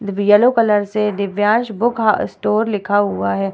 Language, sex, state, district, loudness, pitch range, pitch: Hindi, female, Bihar, Vaishali, -16 LUFS, 200-215 Hz, 210 Hz